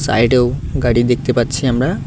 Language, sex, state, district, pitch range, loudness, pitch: Bengali, male, West Bengal, Cooch Behar, 120-130 Hz, -15 LUFS, 125 Hz